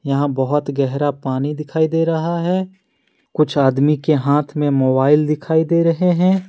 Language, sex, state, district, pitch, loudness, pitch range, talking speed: Hindi, male, Jharkhand, Deoghar, 150 Hz, -17 LUFS, 140-165 Hz, 165 wpm